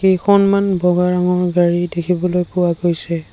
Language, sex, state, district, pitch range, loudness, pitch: Assamese, male, Assam, Sonitpur, 175-180 Hz, -16 LUFS, 180 Hz